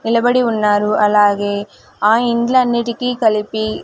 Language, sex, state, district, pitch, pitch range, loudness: Telugu, female, Andhra Pradesh, Sri Satya Sai, 220 Hz, 210-235 Hz, -15 LUFS